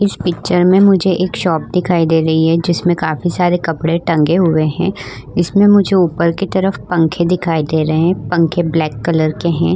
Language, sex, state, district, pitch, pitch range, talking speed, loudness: Hindi, female, Uttar Pradesh, Varanasi, 170 Hz, 160-180 Hz, 195 wpm, -14 LUFS